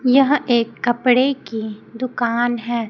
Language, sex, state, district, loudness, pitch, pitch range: Hindi, female, Chhattisgarh, Raipur, -19 LUFS, 240 Hz, 235-255 Hz